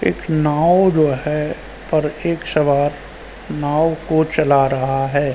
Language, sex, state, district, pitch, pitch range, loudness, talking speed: Hindi, male, Uttar Pradesh, Ghazipur, 150 Hz, 145-160 Hz, -17 LUFS, 135 wpm